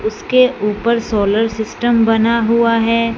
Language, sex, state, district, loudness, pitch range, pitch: Hindi, female, Punjab, Fazilka, -15 LUFS, 220-235 Hz, 230 Hz